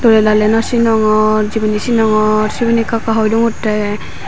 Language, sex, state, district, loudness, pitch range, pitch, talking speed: Chakma, female, Tripura, Dhalai, -13 LUFS, 215-225 Hz, 220 Hz, 155 wpm